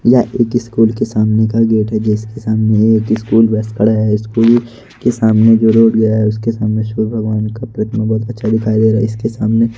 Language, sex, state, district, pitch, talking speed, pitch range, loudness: Hindi, male, Delhi, New Delhi, 110 Hz, 225 wpm, 110-115 Hz, -13 LUFS